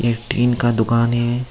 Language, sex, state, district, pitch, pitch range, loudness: Hindi, male, Tripura, Dhalai, 120 Hz, 115-120 Hz, -18 LUFS